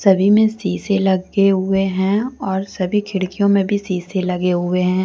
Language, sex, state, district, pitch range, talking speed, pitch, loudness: Hindi, female, Jharkhand, Deoghar, 185-200 Hz, 165 wpm, 195 Hz, -18 LUFS